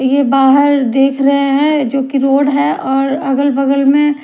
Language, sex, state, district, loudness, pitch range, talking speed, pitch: Hindi, female, Odisha, Nuapada, -12 LUFS, 270-280 Hz, 185 wpm, 275 Hz